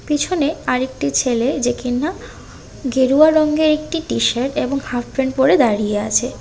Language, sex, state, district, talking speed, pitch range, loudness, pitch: Bengali, female, Tripura, West Tripura, 140 wpm, 245-300 Hz, -17 LUFS, 265 Hz